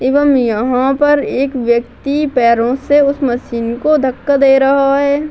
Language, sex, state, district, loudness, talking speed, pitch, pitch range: Hindi, female, Bihar, Gaya, -13 LUFS, 160 wpm, 270 Hz, 245-285 Hz